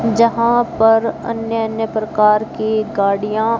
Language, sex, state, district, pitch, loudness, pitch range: Hindi, female, Haryana, Jhajjar, 225 Hz, -16 LUFS, 215-230 Hz